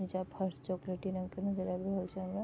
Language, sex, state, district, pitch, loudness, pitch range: Maithili, female, Bihar, Vaishali, 185 Hz, -38 LUFS, 185-190 Hz